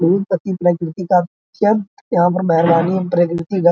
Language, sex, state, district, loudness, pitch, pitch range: Hindi, male, Bihar, Araria, -17 LUFS, 180 Hz, 170-190 Hz